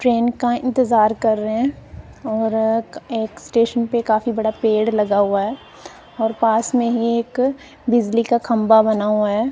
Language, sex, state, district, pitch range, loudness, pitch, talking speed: Hindi, female, Punjab, Kapurthala, 220-240 Hz, -18 LUFS, 230 Hz, 170 wpm